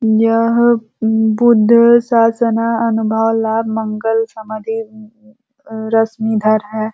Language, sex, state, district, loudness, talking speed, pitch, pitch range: Hindi, female, Uttar Pradesh, Ghazipur, -14 LUFS, 80 wpm, 225 Hz, 220-230 Hz